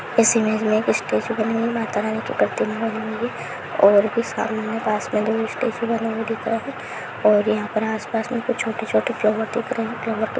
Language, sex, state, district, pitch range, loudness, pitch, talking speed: Hindi, female, Bihar, Purnia, 215-230 Hz, -22 LUFS, 225 Hz, 240 wpm